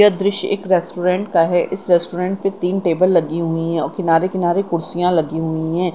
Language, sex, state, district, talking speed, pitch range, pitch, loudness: Hindi, female, Chandigarh, Chandigarh, 210 wpm, 165-185 Hz, 175 Hz, -18 LUFS